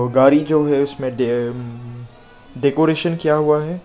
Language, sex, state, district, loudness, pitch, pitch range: Hindi, male, Nagaland, Kohima, -17 LUFS, 140 Hz, 120-150 Hz